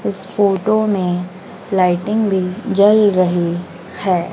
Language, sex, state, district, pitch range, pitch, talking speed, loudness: Hindi, female, Madhya Pradesh, Dhar, 180-205 Hz, 190 Hz, 110 wpm, -16 LUFS